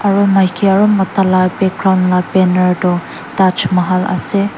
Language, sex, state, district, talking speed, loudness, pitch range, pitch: Nagamese, female, Nagaland, Dimapur, 155 wpm, -13 LUFS, 185-195 Hz, 185 Hz